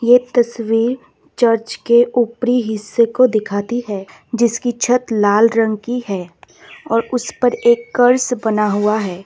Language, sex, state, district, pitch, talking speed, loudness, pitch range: Hindi, female, Assam, Kamrup Metropolitan, 235 Hz, 140 wpm, -16 LUFS, 215-245 Hz